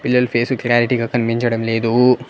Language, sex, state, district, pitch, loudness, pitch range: Telugu, male, Andhra Pradesh, Annamaya, 120 Hz, -17 LUFS, 115-125 Hz